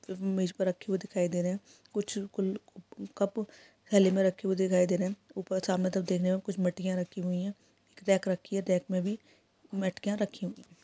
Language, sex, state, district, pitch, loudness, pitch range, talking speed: Hindi, female, Bihar, Kishanganj, 190 Hz, -31 LUFS, 180-195 Hz, 220 wpm